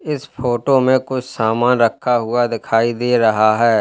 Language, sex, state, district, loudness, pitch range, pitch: Hindi, male, Uttar Pradesh, Lalitpur, -16 LUFS, 115-130 Hz, 120 Hz